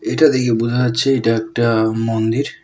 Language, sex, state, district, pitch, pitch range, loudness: Bengali, male, West Bengal, Alipurduar, 115 Hz, 115-125 Hz, -16 LUFS